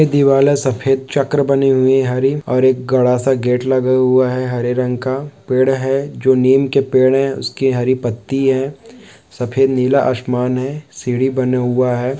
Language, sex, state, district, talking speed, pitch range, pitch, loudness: Hindi, male, West Bengal, Purulia, 175 wpm, 125-135 Hz, 130 Hz, -15 LUFS